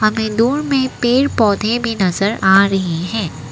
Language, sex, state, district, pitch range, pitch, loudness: Hindi, female, Assam, Kamrup Metropolitan, 195-240 Hz, 215 Hz, -15 LUFS